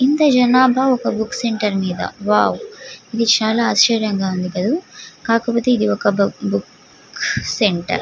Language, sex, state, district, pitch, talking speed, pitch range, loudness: Telugu, female, Andhra Pradesh, Guntur, 230 Hz, 135 wpm, 200-250 Hz, -17 LUFS